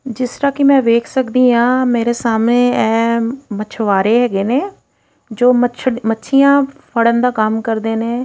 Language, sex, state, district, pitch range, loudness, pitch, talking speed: Punjabi, female, Punjab, Fazilka, 225-255 Hz, -14 LUFS, 240 Hz, 155 wpm